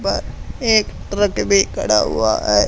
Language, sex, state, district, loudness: Hindi, male, Haryana, Charkhi Dadri, -17 LUFS